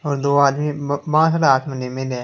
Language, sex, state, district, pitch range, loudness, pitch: Marwari, male, Rajasthan, Nagaur, 135-150 Hz, -18 LUFS, 140 Hz